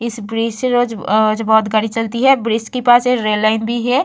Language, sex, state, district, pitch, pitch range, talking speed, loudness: Hindi, female, Bihar, Vaishali, 225 Hz, 220-245 Hz, 250 wpm, -15 LUFS